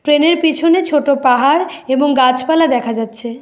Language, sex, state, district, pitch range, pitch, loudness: Bengali, female, West Bengal, Alipurduar, 255-320 Hz, 285 Hz, -13 LUFS